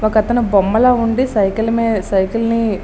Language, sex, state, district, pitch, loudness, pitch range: Telugu, female, Andhra Pradesh, Srikakulam, 225 Hz, -15 LUFS, 210-230 Hz